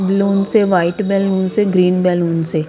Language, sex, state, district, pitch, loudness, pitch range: Hindi, female, Punjab, Kapurthala, 190 Hz, -15 LUFS, 175-200 Hz